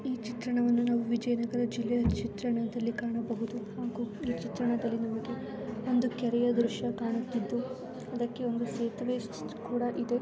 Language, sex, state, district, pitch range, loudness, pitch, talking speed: Kannada, female, Karnataka, Bijapur, 230-240 Hz, -32 LUFS, 235 Hz, 115 wpm